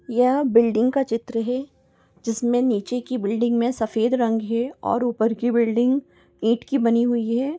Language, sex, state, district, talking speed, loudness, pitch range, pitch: Hindi, female, Bihar, East Champaran, 175 wpm, -22 LUFS, 230-250 Hz, 240 Hz